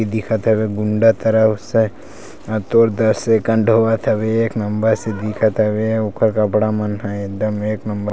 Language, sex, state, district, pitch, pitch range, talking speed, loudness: Chhattisgarhi, male, Chhattisgarh, Sarguja, 110 Hz, 105-110 Hz, 185 wpm, -17 LUFS